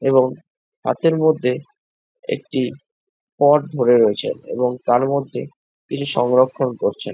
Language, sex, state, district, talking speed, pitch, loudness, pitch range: Bengali, male, West Bengal, Jhargram, 120 wpm, 140 Hz, -19 LUFS, 125-165 Hz